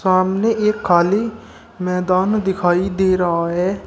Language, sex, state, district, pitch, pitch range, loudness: Hindi, male, Uttar Pradesh, Shamli, 185 Hz, 180-210 Hz, -17 LUFS